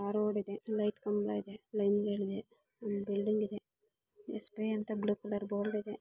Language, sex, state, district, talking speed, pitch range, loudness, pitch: Kannada, female, Karnataka, Mysore, 90 wpm, 205-215 Hz, -36 LUFS, 210 Hz